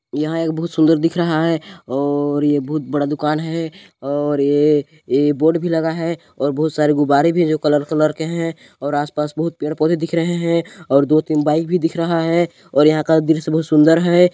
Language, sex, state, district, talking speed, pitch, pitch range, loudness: Hindi, male, Chhattisgarh, Balrampur, 235 wpm, 155 Hz, 150-165 Hz, -17 LUFS